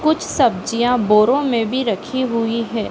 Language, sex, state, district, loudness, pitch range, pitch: Hindi, female, Uttar Pradesh, Deoria, -17 LUFS, 225-260 Hz, 235 Hz